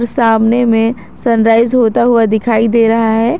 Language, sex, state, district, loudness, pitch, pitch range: Hindi, female, Jharkhand, Garhwa, -11 LUFS, 230 Hz, 225-235 Hz